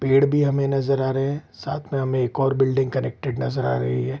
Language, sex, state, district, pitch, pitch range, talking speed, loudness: Hindi, male, Bihar, Vaishali, 135 Hz, 130-140 Hz, 270 wpm, -22 LUFS